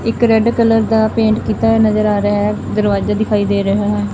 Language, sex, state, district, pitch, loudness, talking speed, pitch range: Punjabi, female, Punjab, Fazilka, 210 Hz, -14 LUFS, 230 wpm, 205-225 Hz